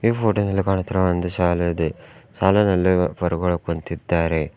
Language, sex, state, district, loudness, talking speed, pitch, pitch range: Kannada, male, Karnataka, Bidar, -21 LUFS, 120 wpm, 90 Hz, 85-100 Hz